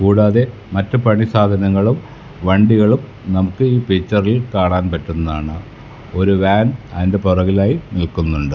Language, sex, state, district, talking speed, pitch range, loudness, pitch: Malayalam, male, Kerala, Kasaragod, 100 wpm, 90-110 Hz, -16 LUFS, 100 Hz